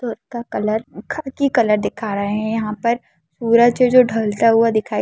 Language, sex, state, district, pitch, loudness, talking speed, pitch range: Hindi, female, Chhattisgarh, Kabirdham, 230 Hz, -18 LUFS, 190 wpm, 215-240 Hz